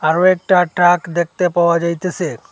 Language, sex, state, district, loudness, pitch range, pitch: Bengali, male, Assam, Hailakandi, -15 LUFS, 170-180 Hz, 175 Hz